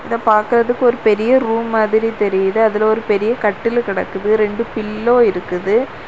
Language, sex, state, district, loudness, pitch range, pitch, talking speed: Tamil, female, Tamil Nadu, Kanyakumari, -16 LUFS, 210-230 Hz, 220 Hz, 150 wpm